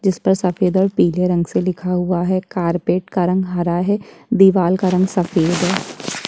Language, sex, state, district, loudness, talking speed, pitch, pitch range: Hindi, female, Chhattisgarh, Kabirdham, -17 LUFS, 190 wpm, 185 Hz, 175-190 Hz